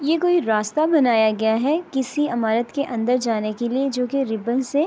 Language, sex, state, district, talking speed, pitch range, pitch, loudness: Urdu, female, Andhra Pradesh, Anantapur, 210 wpm, 225-290 Hz, 250 Hz, -21 LUFS